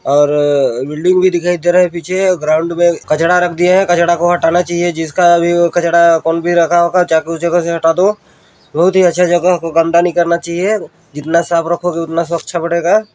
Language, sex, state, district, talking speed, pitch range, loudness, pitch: Hindi, male, Chhattisgarh, Balrampur, 210 wpm, 165-175 Hz, -12 LUFS, 170 Hz